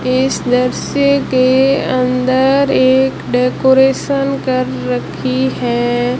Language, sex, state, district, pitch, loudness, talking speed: Hindi, female, Rajasthan, Jaisalmer, 255 Hz, -14 LUFS, 85 wpm